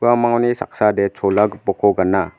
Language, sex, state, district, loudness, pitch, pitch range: Garo, male, Meghalaya, West Garo Hills, -17 LUFS, 105 Hz, 95-120 Hz